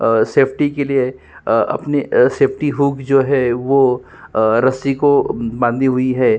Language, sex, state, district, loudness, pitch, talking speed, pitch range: Hindi, male, Uttarakhand, Tehri Garhwal, -16 LUFS, 135 Hz, 160 wpm, 125-140 Hz